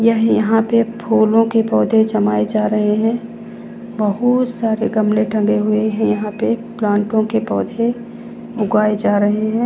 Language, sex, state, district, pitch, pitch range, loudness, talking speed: Hindi, female, Chandigarh, Chandigarh, 220 Hz, 210-230 Hz, -16 LUFS, 155 wpm